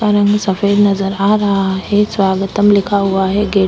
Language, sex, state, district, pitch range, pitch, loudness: Hindi, female, Uttar Pradesh, Etah, 195-205 Hz, 200 Hz, -14 LUFS